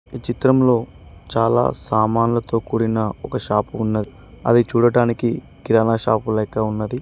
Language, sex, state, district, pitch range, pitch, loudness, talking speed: Telugu, male, Telangana, Mahabubabad, 110-120 Hz, 115 Hz, -19 LUFS, 120 wpm